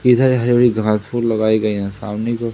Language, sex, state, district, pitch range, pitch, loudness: Hindi, male, Madhya Pradesh, Umaria, 105-120 Hz, 115 Hz, -17 LUFS